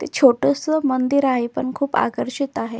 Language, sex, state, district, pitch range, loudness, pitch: Marathi, female, Maharashtra, Solapur, 255-280 Hz, -20 LUFS, 275 Hz